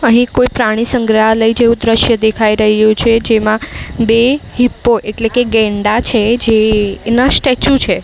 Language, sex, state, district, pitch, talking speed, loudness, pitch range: Gujarati, female, Maharashtra, Mumbai Suburban, 225 Hz, 150 wpm, -12 LUFS, 220-245 Hz